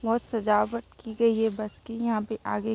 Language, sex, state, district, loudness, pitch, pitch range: Hindi, female, Jharkhand, Sahebganj, -28 LUFS, 225 Hz, 215-230 Hz